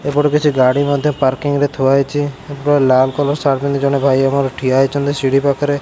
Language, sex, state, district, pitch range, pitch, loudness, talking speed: Odia, male, Odisha, Khordha, 135-145 Hz, 140 Hz, -15 LUFS, 195 wpm